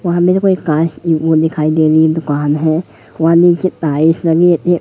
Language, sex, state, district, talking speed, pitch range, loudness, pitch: Hindi, male, Madhya Pradesh, Katni, 235 wpm, 155-175 Hz, -13 LUFS, 160 Hz